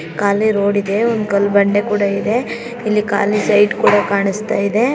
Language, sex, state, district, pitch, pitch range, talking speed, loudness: Kannada, female, Karnataka, Chamarajanagar, 205 Hz, 200-215 Hz, 170 wpm, -15 LUFS